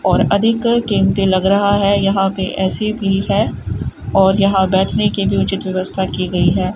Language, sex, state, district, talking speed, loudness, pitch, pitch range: Hindi, female, Rajasthan, Bikaner, 185 wpm, -16 LUFS, 195 Hz, 190-200 Hz